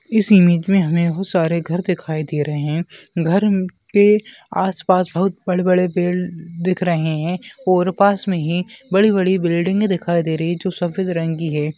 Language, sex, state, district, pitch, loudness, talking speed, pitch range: Hindi, male, Maharashtra, Nagpur, 180 Hz, -18 LUFS, 190 wpm, 170-190 Hz